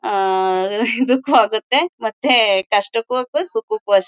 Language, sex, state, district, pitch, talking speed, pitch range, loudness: Kannada, female, Karnataka, Mysore, 230 Hz, 115 wpm, 200-265 Hz, -17 LUFS